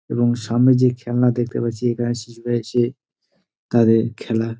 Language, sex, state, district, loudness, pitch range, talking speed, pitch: Bengali, male, West Bengal, Dakshin Dinajpur, -20 LUFS, 115-120 Hz, 145 wpm, 120 Hz